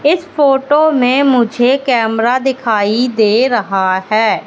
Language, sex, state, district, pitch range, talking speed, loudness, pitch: Hindi, female, Madhya Pradesh, Katni, 220-270 Hz, 120 wpm, -12 LUFS, 250 Hz